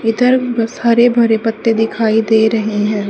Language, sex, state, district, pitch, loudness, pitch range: Hindi, female, Haryana, Charkhi Dadri, 225 Hz, -14 LUFS, 220-235 Hz